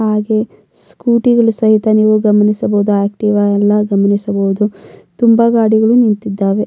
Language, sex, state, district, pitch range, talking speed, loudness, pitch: Kannada, female, Karnataka, Mysore, 205-220 Hz, 90 wpm, -12 LUFS, 210 Hz